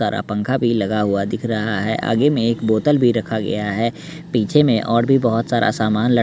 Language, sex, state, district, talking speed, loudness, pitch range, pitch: Hindi, male, Bihar, West Champaran, 230 wpm, -18 LUFS, 105-120 Hz, 115 Hz